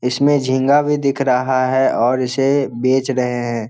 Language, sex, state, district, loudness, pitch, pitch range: Hindi, male, Bihar, Jamui, -16 LUFS, 130 Hz, 125-140 Hz